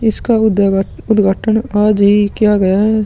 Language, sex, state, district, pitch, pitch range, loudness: Hindi, male, Chhattisgarh, Sukma, 210 Hz, 200-220 Hz, -13 LUFS